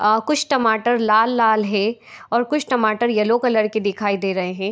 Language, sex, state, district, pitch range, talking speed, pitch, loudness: Hindi, female, Bihar, Begusarai, 210-240 Hz, 190 wpm, 220 Hz, -19 LUFS